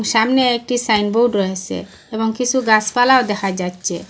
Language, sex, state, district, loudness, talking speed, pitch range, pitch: Bengali, female, Assam, Hailakandi, -17 LUFS, 145 wpm, 205-245 Hz, 220 Hz